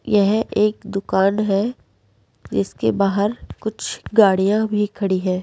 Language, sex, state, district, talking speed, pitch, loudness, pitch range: Hindi, female, Delhi, New Delhi, 120 wpm, 200 Hz, -20 LUFS, 185-210 Hz